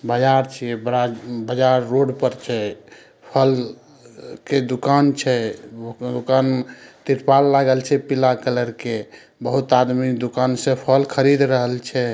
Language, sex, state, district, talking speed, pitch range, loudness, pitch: Maithili, male, Bihar, Samastipur, 130 wpm, 125-135 Hz, -19 LUFS, 130 Hz